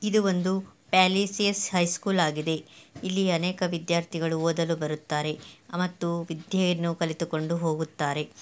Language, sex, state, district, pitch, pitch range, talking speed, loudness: Kannada, female, Karnataka, Belgaum, 170 Hz, 160-185 Hz, 115 wpm, -27 LUFS